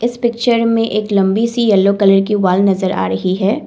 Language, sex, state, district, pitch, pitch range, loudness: Hindi, female, Assam, Kamrup Metropolitan, 205 Hz, 195-230 Hz, -14 LUFS